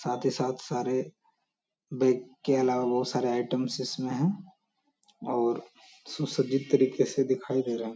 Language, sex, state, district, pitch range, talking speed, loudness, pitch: Hindi, male, Bihar, Jamui, 125-140 Hz, 150 wpm, -29 LUFS, 130 Hz